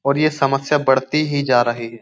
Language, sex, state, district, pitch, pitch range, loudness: Hindi, male, Uttar Pradesh, Jyotiba Phule Nagar, 135 Hz, 125-150 Hz, -18 LUFS